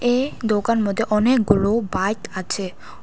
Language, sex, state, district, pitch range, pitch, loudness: Bengali, female, Tripura, West Tripura, 200-230 Hz, 215 Hz, -20 LUFS